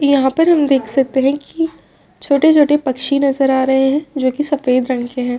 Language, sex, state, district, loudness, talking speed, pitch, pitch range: Hindi, female, Uttar Pradesh, Varanasi, -15 LUFS, 200 wpm, 275 Hz, 260-295 Hz